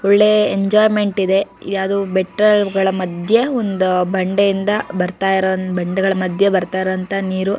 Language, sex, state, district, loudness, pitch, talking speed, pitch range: Kannada, female, Karnataka, Shimoga, -16 LUFS, 195 Hz, 95 wpm, 190-200 Hz